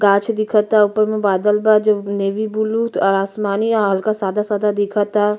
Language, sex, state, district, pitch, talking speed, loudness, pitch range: Bhojpuri, female, Uttar Pradesh, Ghazipur, 210 Hz, 180 wpm, -17 LUFS, 200-215 Hz